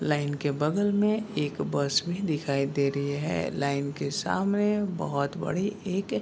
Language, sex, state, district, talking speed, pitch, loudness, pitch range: Hindi, male, Bihar, Kishanganj, 175 wpm, 150 Hz, -28 LUFS, 140-200 Hz